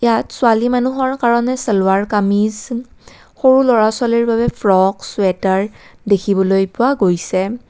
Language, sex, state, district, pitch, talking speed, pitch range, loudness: Assamese, female, Assam, Kamrup Metropolitan, 220 Hz, 125 wpm, 195-240 Hz, -15 LUFS